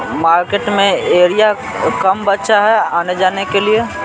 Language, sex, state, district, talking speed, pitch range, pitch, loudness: Hindi, male, Bihar, Patna, 150 wpm, 185-210 Hz, 200 Hz, -13 LUFS